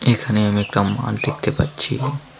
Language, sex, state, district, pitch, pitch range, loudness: Bengali, male, West Bengal, Alipurduar, 125 Hz, 105-140 Hz, -20 LUFS